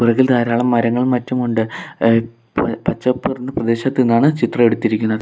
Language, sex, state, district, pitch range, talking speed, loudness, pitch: Malayalam, male, Kerala, Kollam, 115-125 Hz, 140 wpm, -17 LUFS, 120 Hz